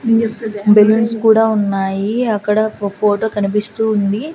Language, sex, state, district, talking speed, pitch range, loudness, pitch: Telugu, female, Andhra Pradesh, Annamaya, 110 wpm, 205-220 Hz, -15 LUFS, 215 Hz